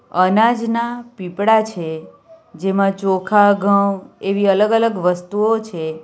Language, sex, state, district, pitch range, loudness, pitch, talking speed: Gujarati, female, Gujarat, Valsad, 185-220 Hz, -17 LUFS, 200 Hz, 100 wpm